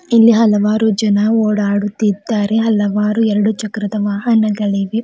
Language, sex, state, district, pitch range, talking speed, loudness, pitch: Kannada, female, Karnataka, Bidar, 205-220 Hz, 105 wpm, -15 LUFS, 215 Hz